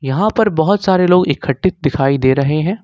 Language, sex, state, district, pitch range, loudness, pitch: Hindi, male, Jharkhand, Ranchi, 140-190 Hz, -14 LUFS, 160 Hz